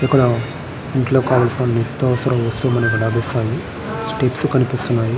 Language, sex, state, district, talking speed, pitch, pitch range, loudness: Telugu, male, Andhra Pradesh, Srikakulam, 105 wpm, 125 Hz, 120-130 Hz, -18 LUFS